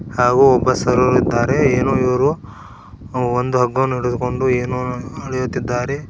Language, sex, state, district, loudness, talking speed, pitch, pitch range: Kannada, male, Karnataka, Koppal, -17 LUFS, 100 wpm, 125 Hz, 125-130 Hz